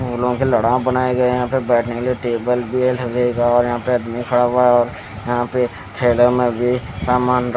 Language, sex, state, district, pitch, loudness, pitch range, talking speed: Hindi, male, Chandigarh, Chandigarh, 125 Hz, -17 LUFS, 120-125 Hz, 235 wpm